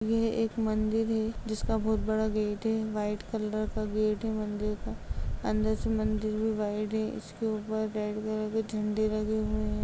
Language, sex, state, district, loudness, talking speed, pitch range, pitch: Hindi, female, Uttar Pradesh, Jalaun, -31 LUFS, 190 wpm, 210-220 Hz, 215 Hz